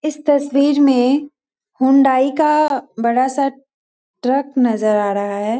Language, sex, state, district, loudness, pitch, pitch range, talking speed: Hindi, female, Bihar, Sitamarhi, -16 LUFS, 270 Hz, 245-285 Hz, 140 wpm